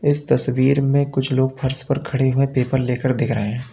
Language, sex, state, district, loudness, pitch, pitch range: Hindi, male, Uttar Pradesh, Lalitpur, -18 LUFS, 130 Hz, 130-135 Hz